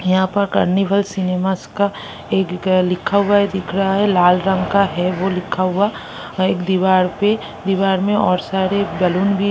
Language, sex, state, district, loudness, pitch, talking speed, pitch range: Hindi, female, Chhattisgarh, Kabirdham, -17 LUFS, 190 Hz, 190 wpm, 185-200 Hz